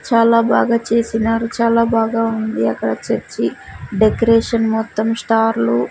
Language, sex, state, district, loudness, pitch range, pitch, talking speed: Telugu, female, Andhra Pradesh, Sri Satya Sai, -16 LUFS, 220-230 Hz, 225 Hz, 120 wpm